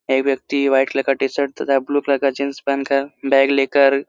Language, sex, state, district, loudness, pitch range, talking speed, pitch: Hindi, male, Chhattisgarh, Korba, -18 LUFS, 135-140 Hz, 190 wpm, 140 Hz